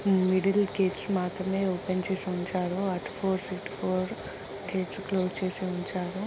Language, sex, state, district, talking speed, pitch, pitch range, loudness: Telugu, female, Telangana, Nalgonda, 135 wpm, 185 Hz, 185-195 Hz, -29 LUFS